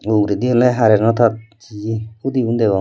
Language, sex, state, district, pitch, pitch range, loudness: Chakma, male, Tripura, Dhalai, 110 Hz, 110-120 Hz, -16 LUFS